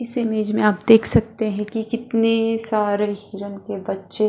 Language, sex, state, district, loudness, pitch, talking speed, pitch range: Hindi, female, Bihar, Kishanganj, -20 LUFS, 215 Hz, 195 wpm, 205-225 Hz